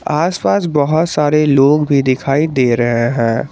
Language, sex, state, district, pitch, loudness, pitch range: Hindi, male, Jharkhand, Garhwa, 145 Hz, -14 LUFS, 130-150 Hz